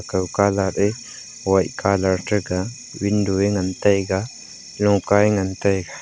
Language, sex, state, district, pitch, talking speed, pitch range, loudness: Wancho, male, Arunachal Pradesh, Longding, 100 Hz, 130 wpm, 95-105 Hz, -20 LUFS